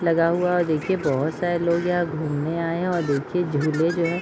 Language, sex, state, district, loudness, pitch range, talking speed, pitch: Hindi, female, Bihar, Bhagalpur, -23 LUFS, 155-175 Hz, 255 wpm, 170 Hz